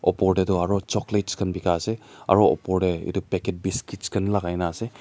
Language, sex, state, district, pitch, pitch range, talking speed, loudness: Nagamese, male, Nagaland, Dimapur, 95 Hz, 90-100 Hz, 215 wpm, -24 LUFS